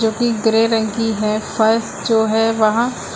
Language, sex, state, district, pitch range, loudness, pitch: Hindi, female, Uttar Pradesh, Lucknow, 220-225 Hz, -17 LUFS, 225 Hz